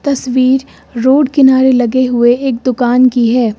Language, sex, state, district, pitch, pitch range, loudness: Hindi, female, Uttar Pradesh, Lucknow, 255 Hz, 245-265 Hz, -11 LUFS